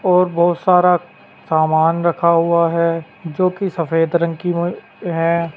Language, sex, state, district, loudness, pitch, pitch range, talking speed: Hindi, male, Uttar Pradesh, Saharanpur, -17 LUFS, 170 Hz, 165-175 Hz, 150 wpm